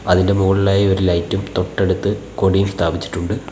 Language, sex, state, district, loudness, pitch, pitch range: Malayalam, male, Kerala, Kollam, -17 LUFS, 95 Hz, 90-100 Hz